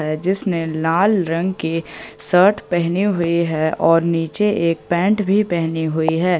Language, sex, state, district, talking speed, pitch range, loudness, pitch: Hindi, male, Jharkhand, Ranchi, 150 wpm, 165-190 Hz, -18 LUFS, 170 Hz